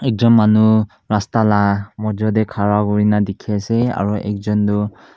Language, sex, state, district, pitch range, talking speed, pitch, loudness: Nagamese, male, Nagaland, Kohima, 105-110 Hz, 150 wpm, 105 Hz, -17 LUFS